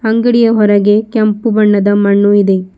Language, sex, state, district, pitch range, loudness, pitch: Kannada, female, Karnataka, Bidar, 205-220 Hz, -10 LUFS, 210 Hz